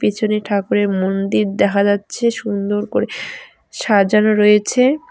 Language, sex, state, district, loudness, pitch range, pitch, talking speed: Bengali, female, West Bengal, Cooch Behar, -16 LUFS, 200-215 Hz, 205 Hz, 105 wpm